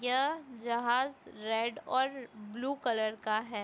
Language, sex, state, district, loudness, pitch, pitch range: Hindi, female, Chhattisgarh, Bastar, -33 LUFS, 240 Hz, 220-265 Hz